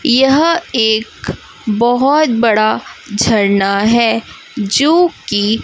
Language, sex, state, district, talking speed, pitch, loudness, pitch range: Hindi, female, Chhattisgarh, Raipur, 75 wpm, 230 Hz, -13 LUFS, 215-270 Hz